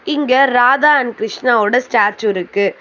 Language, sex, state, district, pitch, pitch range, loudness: Tamil, female, Tamil Nadu, Chennai, 245 Hz, 210-265 Hz, -14 LUFS